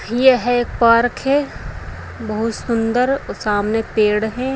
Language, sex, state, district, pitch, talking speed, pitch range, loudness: Hindi, female, Uttar Pradesh, Saharanpur, 235 Hz, 145 wpm, 220-250 Hz, -17 LUFS